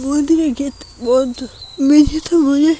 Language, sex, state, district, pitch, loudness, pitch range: Bengali, female, West Bengal, Kolkata, 285 Hz, -15 LUFS, 265-315 Hz